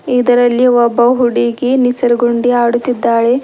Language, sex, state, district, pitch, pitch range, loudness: Kannada, female, Karnataka, Bidar, 245 Hz, 240-250 Hz, -12 LUFS